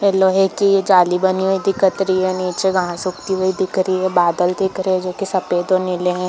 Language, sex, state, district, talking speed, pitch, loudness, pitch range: Hindi, female, Chhattisgarh, Bilaspur, 245 wpm, 185 Hz, -17 LUFS, 180-190 Hz